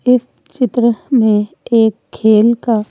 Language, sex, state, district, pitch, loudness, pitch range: Hindi, female, Madhya Pradesh, Bhopal, 230 Hz, -14 LUFS, 220-250 Hz